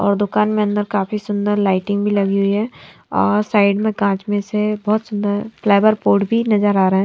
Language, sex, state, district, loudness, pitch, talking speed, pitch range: Hindi, female, Haryana, Charkhi Dadri, -17 LUFS, 205 Hz, 220 wpm, 200-210 Hz